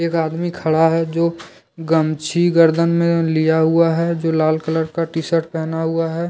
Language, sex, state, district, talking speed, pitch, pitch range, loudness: Hindi, male, Jharkhand, Deoghar, 180 wpm, 165 Hz, 160-170 Hz, -17 LUFS